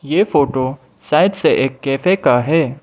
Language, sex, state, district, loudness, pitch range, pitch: Hindi, male, Mizoram, Aizawl, -16 LUFS, 130-165 Hz, 140 Hz